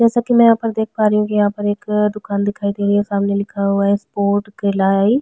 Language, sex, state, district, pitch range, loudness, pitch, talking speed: Hindi, female, Chhattisgarh, Sukma, 200-215 Hz, -17 LUFS, 205 Hz, 265 wpm